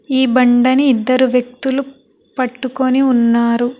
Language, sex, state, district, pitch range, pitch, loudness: Telugu, female, Telangana, Hyderabad, 245-265 Hz, 255 Hz, -14 LUFS